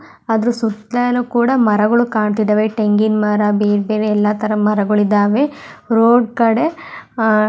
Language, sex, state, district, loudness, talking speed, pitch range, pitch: Kannada, female, Karnataka, Mysore, -15 LUFS, 135 wpm, 210-235 Hz, 215 Hz